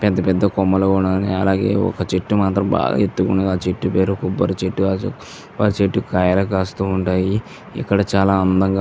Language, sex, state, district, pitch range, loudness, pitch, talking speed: Telugu, male, Andhra Pradesh, Visakhapatnam, 95-100 Hz, -18 LUFS, 95 Hz, 170 wpm